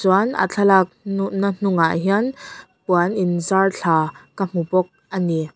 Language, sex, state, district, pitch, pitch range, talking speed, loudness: Mizo, female, Mizoram, Aizawl, 190 Hz, 175-200 Hz, 150 wpm, -20 LUFS